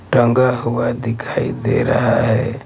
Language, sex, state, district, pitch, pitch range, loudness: Hindi, male, Maharashtra, Mumbai Suburban, 120 Hz, 115-125 Hz, -17 LUFS